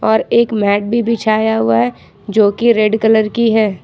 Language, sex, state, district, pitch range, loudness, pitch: Hindi, female, Jharkhand, Ranchi, 200-225 Hz, -13 LUFS, 215 Hz